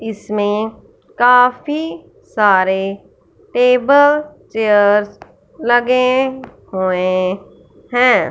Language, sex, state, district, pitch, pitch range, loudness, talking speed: Hindi, male, Punjab, Fazilka, 225 Hz, 205-255 Hz, -15 LUFS, 60 wpm